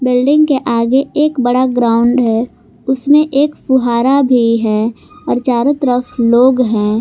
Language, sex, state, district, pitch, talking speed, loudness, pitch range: Hindi, female, Jharkhand, Garhwa, 250 Hz, 145 wpm, -12 LUFS, 235-270 Hz